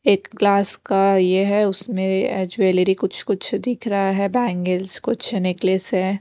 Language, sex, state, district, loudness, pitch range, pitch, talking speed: Hindi, female, Himachal Pradesh, Shimla, -20 LUFS, 190-205 Hz, 195 Hz, 155 wpm